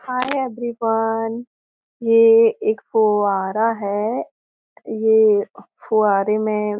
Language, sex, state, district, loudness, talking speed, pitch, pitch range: Hindi, female, Bihar, Jahanabad, -18 LUFS, 90 wpm, 225 Hz, 210-240 Hz